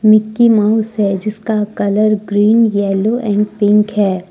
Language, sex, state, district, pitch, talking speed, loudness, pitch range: Hindi, female, Jharkhand, Deoghar, 210 Hz, 125 wpm, -13 LUFS, 205-215 Hz